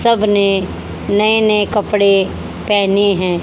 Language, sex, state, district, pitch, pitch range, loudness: Hindi, female, Haryana, Charkhi Dadri, 205 Hz, 195-210 Hz, -14 LUFS